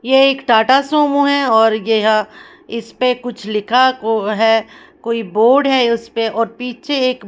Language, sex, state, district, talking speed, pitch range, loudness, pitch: Hindi, female, Haryana, Jhajjar, 155 wpm, 225-260 Hz, -15 LUFS, 230 Hz